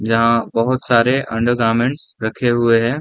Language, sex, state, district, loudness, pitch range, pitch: Hindi, male, Bihar, Saran, -16 LUFS, 115-125 Hz, 115 Hz